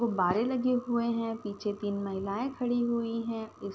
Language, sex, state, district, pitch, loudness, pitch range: Hindi, female, Uttar Pradesh, Ghazipur, 230 Hz, -31 LUFS, 205-240 Hz